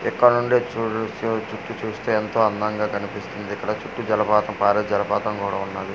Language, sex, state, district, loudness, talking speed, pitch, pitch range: Telugu, male, Andhra Pradesh, Manyam, -23 LUFS, 160 wpm, 105 Hz, 100-110 Hz